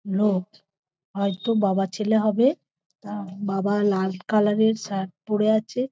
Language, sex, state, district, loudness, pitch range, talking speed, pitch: Bengali, female, West Bengal, Purulia, -23 LUFS, 195-215 Hz, 150 wpm, 205 Hz